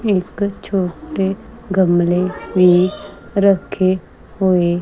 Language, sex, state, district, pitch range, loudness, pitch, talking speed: Punjabi, female, Punjab, Kapurthala, 180-200 Hz, -17 LUFS, 185 Hz, 75 wpm